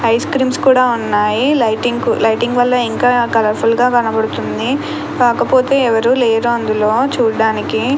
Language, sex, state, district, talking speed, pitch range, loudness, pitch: Telugu, female, Andhra Pradesh, Krishna, 130 wpm, 225-255 Hz, -14 LUFS, 240 Hz